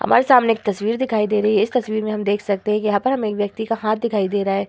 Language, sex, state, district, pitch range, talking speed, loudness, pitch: Hindi, female, Uttar Pradesh, Hamirpur, 205-225 Hz, 335 wpm, -19 LUFS, 215 Hz